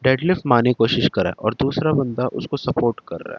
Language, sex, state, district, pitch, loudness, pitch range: Hindi, male, Chandigarh, Chandigarh, 130 Hz, -20 LUFS, 120-145 Hz